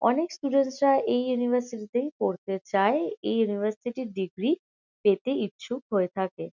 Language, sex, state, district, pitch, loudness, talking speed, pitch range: Bengali, female, West Bengal, Kolkata, 240 Hz, -27 LUFS, 145 wpm, 200-270 Hz